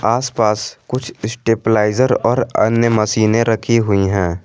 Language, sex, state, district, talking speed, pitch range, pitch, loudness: Hindi, male, Jharkhand, Garhwa, 120 wpm, 105-115 Hz, 110 Hz, -16 LUFS